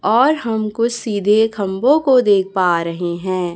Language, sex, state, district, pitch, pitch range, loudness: Hindi, female, Chhattisgarh, Raipur, 205 Hz, 185-230 Hz, -16 LUFS